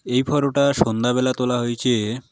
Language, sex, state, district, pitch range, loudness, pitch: Bengali, male, West Bengal, Alipurduar, 120-140 Hz, -20 LUFS, 125 Hz